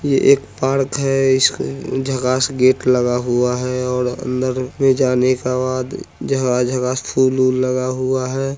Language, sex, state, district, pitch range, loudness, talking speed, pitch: Hindi, male, Bihar, Muzaffarpur, 125-130 Hz, -17 LUFS, 155 wpm, 130 Hz